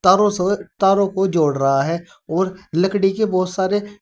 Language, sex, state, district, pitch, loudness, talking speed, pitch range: Hindi, male, Uttar Pradesh, Saharanpur, 190 Hz, -19 LUFS, 180 wpm, 180-200 Hz